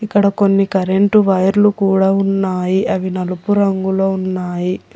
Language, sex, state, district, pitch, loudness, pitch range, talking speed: Telugu, female, Telangana, Hyderabad, 195 Hz, -15 LUFS, 185-200 Hz, 120 wpm